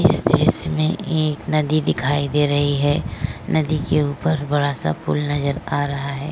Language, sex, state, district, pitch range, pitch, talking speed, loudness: Hindi, female, Uttar Pradesh, Etah, 140-155 Hz, 145 Hz, 180 wpm, -20 LUFS